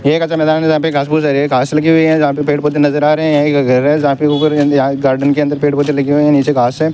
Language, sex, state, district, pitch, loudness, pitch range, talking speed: Hindi, male, Rajasthan, Bikaner, 145 Hz, -12 LUFS, 140-155 Hz, 295 wpm